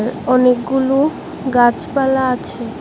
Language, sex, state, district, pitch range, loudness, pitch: Bengali, male, Tripura, West Tripura, 250-270 Hz, -16 LUFS, 255 Hz